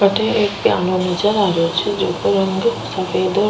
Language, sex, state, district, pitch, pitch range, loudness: Rajasthani, female, Rajasthan, Nagaur, 200 Hz, 185-210 Hz, -17 LUFS